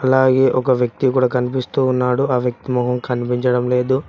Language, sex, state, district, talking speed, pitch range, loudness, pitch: Telugu, male, Telangana, Hyderabad, 160 wpm, 125-130 Hz, -17 LUFS, 125 Hz